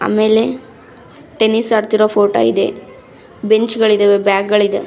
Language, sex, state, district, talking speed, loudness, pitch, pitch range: Kannada, female, Karnataka, Raichur, 110 wpm, -14 LUFS, 215 Hz, 205-225 Hz